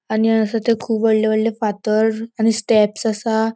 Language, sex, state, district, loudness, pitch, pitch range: Konkani, female, Goa, North and South Goa, -18 LUFS, 220 Hz, 220-225 Hz